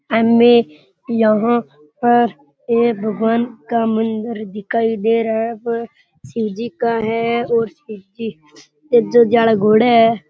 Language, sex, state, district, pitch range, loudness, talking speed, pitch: Rajasthani, male, Rajasthan, Churu, 220-235 Hz, -16 LUFS, 115 wpm, 230 Hz